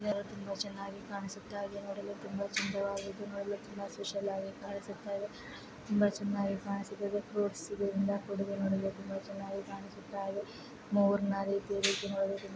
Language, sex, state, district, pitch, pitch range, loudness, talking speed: Kannada, female, Karnataka, Belgaum, 200 Hz, 200-205 Hz, -36 LUFS, 155 wpm